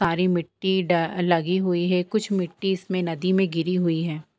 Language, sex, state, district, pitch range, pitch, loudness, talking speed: Hindi, female, Bihar, Purnia, 170-190 Hz, 180 Hz, -23 LUFS, 190 wpm